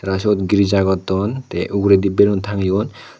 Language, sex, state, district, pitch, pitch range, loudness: Chakma, male, Tripura, Unakoti, 100 Hz, 95-100 Hz, -17 LUFS